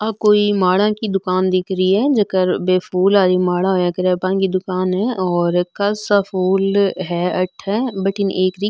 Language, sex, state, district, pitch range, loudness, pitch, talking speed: Marwari, female, Rajasthan, Nagaur, 185-200 Hz, -17 LUFS, 190 Hz, 165 wpm